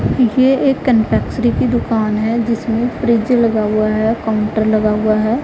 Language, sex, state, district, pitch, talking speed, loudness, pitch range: Hindi, female, Punjab, Pathankot, 225 Hz, 165 wpm, -15 LUFS, 215-240 Hz